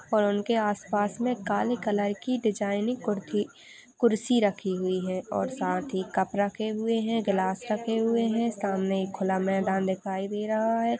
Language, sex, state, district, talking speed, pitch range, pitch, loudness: Hindi, female, Chhattisgarh, Balrampur, 170 wpm, 195-225 Hz, 205 Hz, -28 LUFS